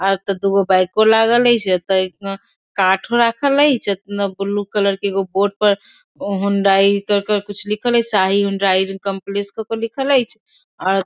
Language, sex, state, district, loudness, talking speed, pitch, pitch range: Maithili, female, Bihar, Darbhanga, -17 LUFS, 180 wpm, 200 Hz, 195-225 Hz